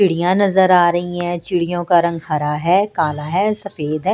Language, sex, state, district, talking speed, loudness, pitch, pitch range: Hindi, female, Punjab, Kapurthala, 205 wpm, -17 LUFS, 175 Hz, 165-190 Hz